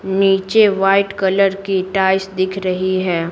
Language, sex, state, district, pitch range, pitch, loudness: Hindi, female, Bihar, Patna, 185-195 Hz, 190 Hz, -16 LUFS